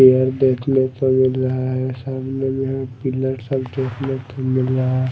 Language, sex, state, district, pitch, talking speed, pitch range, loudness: Hindi, male, Odisha, Malkangiri, 130 Hz, 175 wpm, 130-135 Hz, -20 LUFS